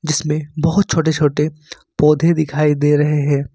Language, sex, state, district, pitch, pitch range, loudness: Hindi, male, Jharkhand, Ranchi, 150 Hz, 150-160 Hz, -16 LUFS